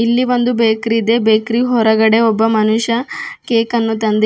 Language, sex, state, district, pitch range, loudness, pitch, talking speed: Kannada, female, Karnataka, Bidar, 220-240 Hz, -14 LUFS, 230 Hz, 140 wpm